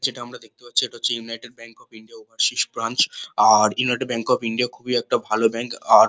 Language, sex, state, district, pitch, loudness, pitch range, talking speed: Bengali, male, West Bengal, Kolkata, 120 Hz, -21 LUFS, 115-125 Hz, 215 wpm